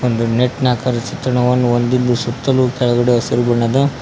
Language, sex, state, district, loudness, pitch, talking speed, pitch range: Kannada, male, Karnataka, Koppal, -16 LUFS, 125 Hz, 150 wpm, 120-125 Hz